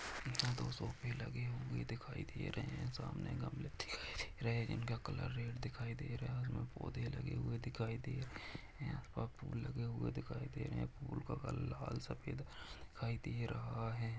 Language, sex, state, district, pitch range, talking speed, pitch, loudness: Hindi, male, Jharkhand, Jamtara, 115-130 Hz, 190 wpm, 120 Hz, -44 LUFS